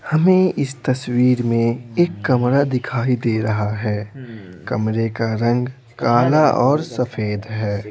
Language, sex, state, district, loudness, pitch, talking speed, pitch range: Hindi, male, Bihar, Patna, -19 LUFS, 120 Hz, 130 wpm, 110-130 Hz